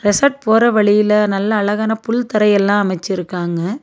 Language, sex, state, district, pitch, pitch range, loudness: Tamil, female, Tamil Nadu, Nilgiris, 210 Hz, 195-220 Hz, -15 LUFS